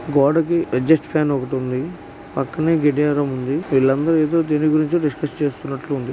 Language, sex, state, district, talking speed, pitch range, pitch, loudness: Telugu, male, Andhra Pradesh, Guntur, 120 wpm, 135-160 Hz, 150 Hz, -19 LUFS